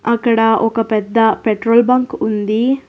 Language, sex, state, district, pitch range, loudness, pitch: Telugu, female, Telangana, Hyderabad, 220-235 Hz, -14 LUFS, 225 Hz